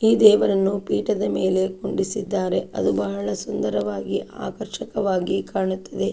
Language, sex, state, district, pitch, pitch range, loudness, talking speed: Kannada, female, Karnataka, Dakshina Kannada, 190 Hz, 185-200 Hz, -23 LUFS, 100 wpm